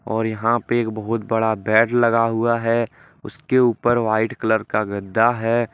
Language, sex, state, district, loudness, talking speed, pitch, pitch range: Hindi, male, Jharkhand, Deoghar, -20 LUFS, 180 wpm, 115 Hz, 110-120 Hz